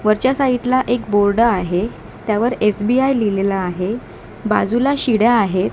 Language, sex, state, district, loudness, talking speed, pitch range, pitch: Marathi, female, Maharashtra, Mumbai Suburban, -17 LUFS, 135 wpm, 205-245 Hz, 225 Hz